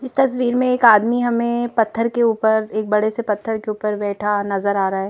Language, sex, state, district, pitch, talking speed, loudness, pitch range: Hindi, female, Madhya Pradesh, Bhopal, 220 Hz, 235 wpm, -18 LUFS, 210-240 Hz